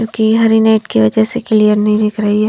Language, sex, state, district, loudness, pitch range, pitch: Hindi, female, Haryana, Charkhi Dadri, -12 LUFS, 210-220 Hz, 220 Hz